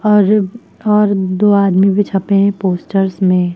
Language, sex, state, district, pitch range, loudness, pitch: Hindi, female, Uttar Pradesh, Lucknow, 190-205 Hz, -13 LUFS, 200 Hz